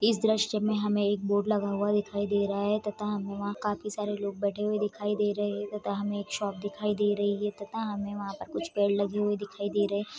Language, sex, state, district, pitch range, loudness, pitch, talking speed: Hindi, female, West Bengal, Kolkata, 205-210 Hz, -30 LUFS, 205 Hz, 255 wpm